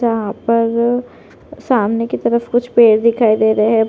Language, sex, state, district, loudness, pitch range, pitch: Hindi, female, Chhattisgarh, Sarguja, -14 LUFS, 220-235 Hz, 230 Hz